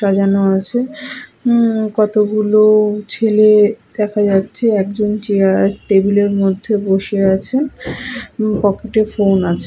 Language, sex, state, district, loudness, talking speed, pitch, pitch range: Bengali, female, West Bengal, Paschim Medinipur, -14 LUFS, 105 wpm, 210 Hz, 195-215 Hz